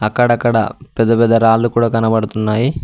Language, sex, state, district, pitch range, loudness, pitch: Telugu, male, Telangana, Mahabubabad, 110-120 Hz, -14 LUFS, 115 Hz